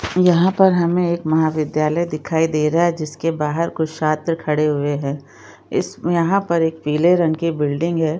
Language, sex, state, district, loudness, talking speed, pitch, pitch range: Hindi, male, Chhattisgarh, Kabirdham, -18 LUFS, 185 wpm, 160 Hz, 155-170 Hz